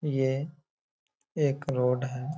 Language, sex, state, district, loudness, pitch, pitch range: Hindi, male, Bihar, Bhagalpur, -29 LUFS, 140 Hz, 130-150 Hz